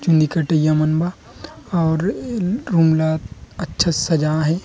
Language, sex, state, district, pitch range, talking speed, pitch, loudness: Chhattisgarhi, male, Chhattisgarh, Rajnandgaon, 155-170 Hz, 140 wpm, 160 Hz, -19 LUFS